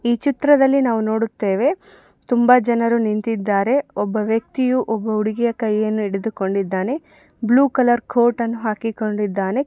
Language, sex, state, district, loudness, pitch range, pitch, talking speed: Kannada, female, Karnataka, Mysore, -19 LUFS, 215-255 Hz, 230 Hz, 130 wpm